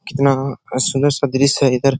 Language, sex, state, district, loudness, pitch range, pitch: Hindi, male, Bihar, Jahanabad, -17 LUFS, 135-140 Hz, 135 Hz